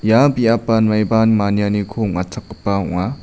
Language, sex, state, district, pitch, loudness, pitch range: Garo, male, Meghalaya, South Garo Hills, 110 Hz, -17 LUFS, 100-115 Hz